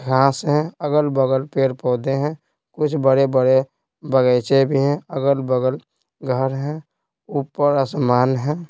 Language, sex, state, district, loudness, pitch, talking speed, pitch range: Hindi, male, Bihar, Patna, -19 LUFS, 135 Hz, 110 wpm, 130-150 Hz